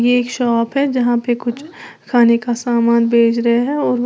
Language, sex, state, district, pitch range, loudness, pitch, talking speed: Hindi, female, Uttar Pradesh, Lalitpur, 235-250 Hz, -15 LUFS, 240 Hz, 190 wpm